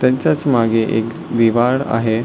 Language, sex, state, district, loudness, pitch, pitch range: Marathi, male, Maharashtra, Solapur, -16 LUFS, 115 Hz, 115-130 Hz